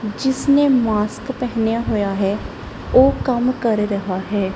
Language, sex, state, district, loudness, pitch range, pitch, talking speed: Punjabi, female, Punjab, Kapurthala, -18 LUFS, 205-255 Hz, 220 Hz, 130 wpm